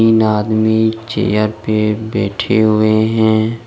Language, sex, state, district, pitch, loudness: Hindi, male, Jharkhand, Deoghar, 110 Hz, -14 LUFS